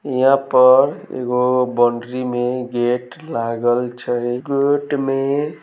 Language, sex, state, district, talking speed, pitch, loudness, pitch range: Maithili, male, Bihar, Samastipur, 105 wpm, 125 Hz, -18 LUFS, 120-140 Hz